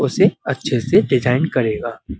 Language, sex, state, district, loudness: Hindi, male, Uttar Pradesh, Budaun, -18 LUFS